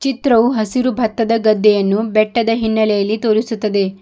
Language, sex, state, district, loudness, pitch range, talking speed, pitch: Kannada, female, Karnataka, Bidar, -15 LUFS, 215-230 Hz, 105 wpm, 220 Hz